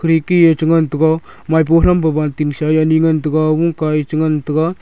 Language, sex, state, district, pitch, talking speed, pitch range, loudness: Wancho, male, Arunachal Pradesh, Longding, 160 Hz, 200 wpm, 155-165 Hz, -14 LUFS